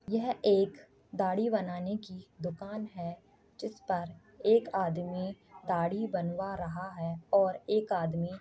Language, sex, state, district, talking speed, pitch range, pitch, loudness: Hindi, female, Chhattisgarh, Jashpur, 130 wpm, 175-205 Hz, 190 Hz, -33 LUFS